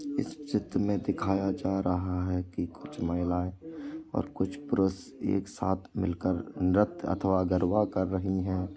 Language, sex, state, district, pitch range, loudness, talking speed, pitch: Hindi, male, Uttar Pradesh, Jalaun, 90-100 Hz, -30 LUFS, 155 wpm, 95 Hz